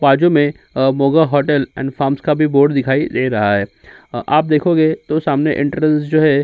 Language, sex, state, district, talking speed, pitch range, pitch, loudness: Hindi, male, Uttar Pradesh, Jyotiba Phule Nagar, 205 wpm, 135-155 Hz, 145 Hz, -15 LUFS